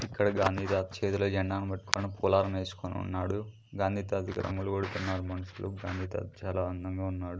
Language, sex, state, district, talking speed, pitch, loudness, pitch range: Telugu, male, Andhra Pradesh, Chittoor, 155 wpm, 95 Hz, -33 LUFS, 95-100 Hz